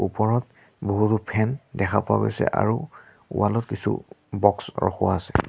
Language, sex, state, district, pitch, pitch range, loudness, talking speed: Assamese, male, Assam, Sonitpur, 105 Hz, 100-115 Hz, -24 LUFS, 130 wpm